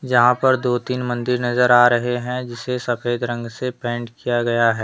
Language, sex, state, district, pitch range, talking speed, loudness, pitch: Hindi, male, Jharkhand, Deoghar, 120-125 Hz, 210 wpm, -19 LUFS, 120 Hz